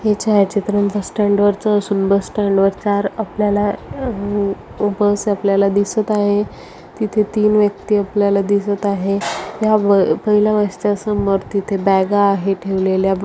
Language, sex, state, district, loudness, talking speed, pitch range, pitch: Marathi, female, Maharashtra, Chandrapur, -17 LUFS, 120 wpm, 200-210 Hz, 205 Hz